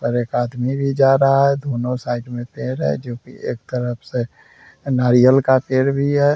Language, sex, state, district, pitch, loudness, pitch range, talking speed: Hindi, male, Bihar, Vaishali, 125 Hz, -18 LUFS, 120-135 Hz, 205 wpm